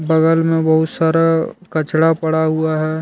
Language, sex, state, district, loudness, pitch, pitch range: Hindi, male, Jharkhand, Deoghar, -16 LUFS, 160 Hz, 160-165 Hz